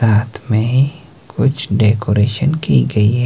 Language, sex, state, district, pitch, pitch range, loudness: Hindi, male, Himachal Pradesh, Shimla, 115 Hz, 105-140 Hz, -15 LUFS